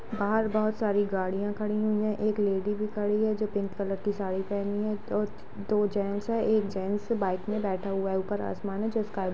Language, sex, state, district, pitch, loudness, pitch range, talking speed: Hindi, female, Jharkhand, Jamtara, 205 Hz, -29 LUFS, 200-215 Hz, 235 wpm